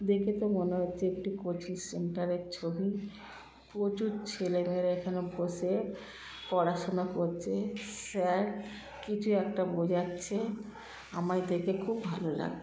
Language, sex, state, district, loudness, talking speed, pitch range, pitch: Bengali, female, West Bengal, Kolkata, -33 LUFS, 115 wpm, 180-205 Hz, 185 Hz